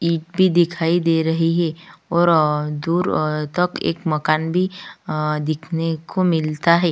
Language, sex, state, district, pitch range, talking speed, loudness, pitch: Hindi, female, Chhattisgarh, Kabirdham, 155-175 Hz, 165 wpm, -20 LUFS, 165 Hz